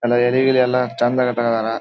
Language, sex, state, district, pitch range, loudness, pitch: Kannada, male, Karnataka, Dharwad, 120-125 Hz, -17 LUFS, 120 Hz